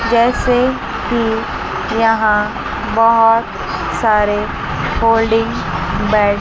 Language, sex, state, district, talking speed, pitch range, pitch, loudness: Hindi, female, Chandigarh, Chandigarh, 75 wpm, 215-230 Hz, 225 Hz, -15 LUFS